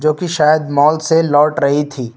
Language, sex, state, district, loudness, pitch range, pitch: Hindi, male, Uttar Pradesh, Lucknow, -13 LUFS, 145-160 Hz, 150 Hz